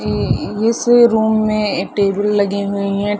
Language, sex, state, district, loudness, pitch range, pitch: Hindi, female, Bihar, Madhepura, -15 LUFS, 200-220 Hz, 210 Hz